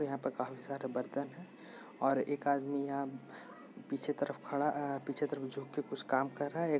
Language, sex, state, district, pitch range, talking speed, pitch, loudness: Hindi, male, Jharkhand, Sahebganj, 135-145 Hz, 205 wpm, 140 Hz, -37 LUFS